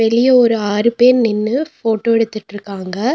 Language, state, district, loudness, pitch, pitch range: Tamil, Tamil Nadu, Nilgiris, -14 LUFS, 225 Hz, 210-245 Hz